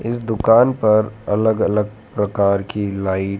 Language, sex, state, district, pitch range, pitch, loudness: Hindi, male, Madhya Pradesh, Dhar, 100-110 Hz, 105 Hz, -18 LUFS